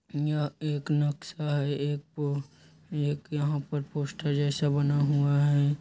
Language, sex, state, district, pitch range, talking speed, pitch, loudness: Hindi, male, Chhattisgarh, Kabirdham, 145-150 Hz, 145 wpm, 145 Hz, -29 LUFS